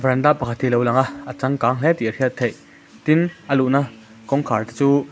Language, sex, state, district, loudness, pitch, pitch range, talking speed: Mizo, male, Mizoram, Aizawl, -20 LUFS, 130 Hz, 120-140 Hz, 220 wpm